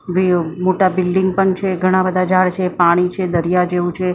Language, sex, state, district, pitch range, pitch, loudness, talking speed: Gujarati, female, Maharashtra, Mumbai Suburban, 180-185 Hz, 185 Hz, -16 LUFS, 190 wpm